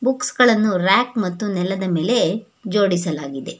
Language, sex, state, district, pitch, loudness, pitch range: Kannada, female, Karnataka, Bangalore, 200 Hz, -19 LUFS, 180-235 Hz